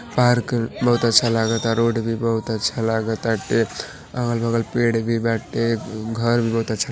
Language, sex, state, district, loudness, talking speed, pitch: Bhojpuri, male, Uttar Pradesh, Deoria, -21 LUFS, 145 wpm, 115 Hz